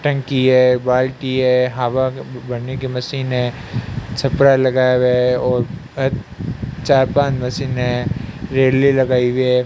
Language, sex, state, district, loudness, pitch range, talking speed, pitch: Hindi, male, Rajasthan, Bikaner, -17 LUFS, 125-135 Hz, 130 wpm, 130 Hz